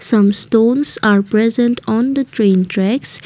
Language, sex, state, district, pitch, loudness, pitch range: English, female, Assam, Kamrup Metropolitan, 225 Hz, -14 LUFS, 205-240 Hz